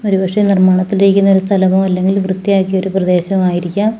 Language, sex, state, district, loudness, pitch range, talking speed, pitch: Malayalam, female, Kerala, Kollam, -13 LUFS, 185-195 Hz, 135 wpm, 190 Hz